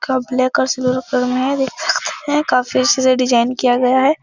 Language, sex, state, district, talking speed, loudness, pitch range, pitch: Hindi, female, Uttar Pradesh, Etah, 240 wpm, -16 LUFS, 250-265 Hz, 255 Hz